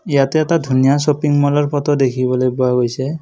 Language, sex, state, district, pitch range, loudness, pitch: Assamese, male, Assam, Kamrup Metropolitan, 130-145 Hz, -16 LUFS, 140 Hz